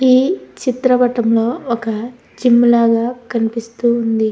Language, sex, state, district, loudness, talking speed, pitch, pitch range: Telugu, female, Andhra Pradesh, Anantapur, -16 LUFS, 95 wpm, 235 Hz, 230-250 Hz